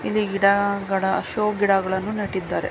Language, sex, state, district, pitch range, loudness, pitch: Kannada, female, Karnataka, Mysore, 195-210 Hz, -22 LUFS, 200 Hz